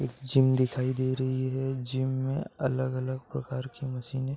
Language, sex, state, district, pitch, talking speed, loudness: Hindi, male, Uttar Pradesh, Gorakhpur, 130 Hz, 180 wpm, -30 LUFS